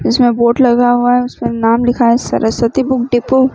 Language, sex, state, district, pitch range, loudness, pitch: Hindi, female, Chhattisgarh, Bilaspur, 235-250 Hz, -12 LUFS, 245 Hz